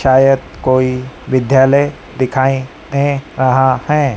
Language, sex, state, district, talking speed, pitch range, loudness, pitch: Hindi, female, Madhya Pradesh, Dhar, 100 wpm, 130-140 Hz, -14 LUFS, 130 Hz